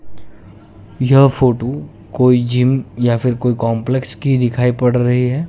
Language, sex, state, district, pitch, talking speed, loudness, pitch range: Hindi, male, Gujarat, Gandhinagar, 125 Hz, 140 wpm, -15 LUFS, 115-130 Hz